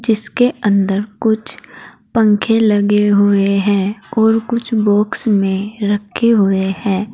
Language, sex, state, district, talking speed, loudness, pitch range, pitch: Hindi, female, Uttar Pradesh, Saharanpur, 120 wpm, -15 LUFS, 200-225 Hz, 210 Hz